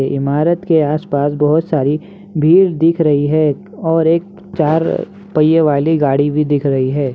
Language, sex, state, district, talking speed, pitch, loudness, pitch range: Hindi, male, Bihar, Begusarai, 170 wpm, 155 Hz, -14 LUFS, 145-165 Hz